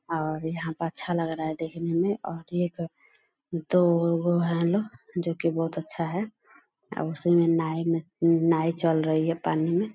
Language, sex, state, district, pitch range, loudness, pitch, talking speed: Hindi, female, Bihar, Purnia, 165-175 Hz, -27 LUFS, 170 Hz, 175 wpm